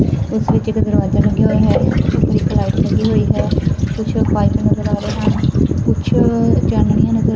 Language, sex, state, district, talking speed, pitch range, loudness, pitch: Punjabi, female, Punjab, Fazilka, 170 wpm, 105-125 Hz, -15 LUFS, 110 Hz